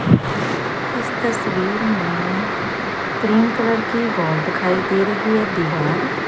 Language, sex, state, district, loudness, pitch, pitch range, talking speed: Hindi, female, Chandigarh, Chandigarh, -19 LUFS, 200 Hz, 175-225 Hz, 125 wpm